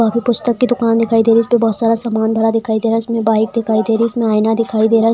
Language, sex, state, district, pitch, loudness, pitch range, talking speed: Hindi, female, Bihar, Lakhisarai, 225 Hz, -14 LUFS, 225-230 Hz, 325 wpm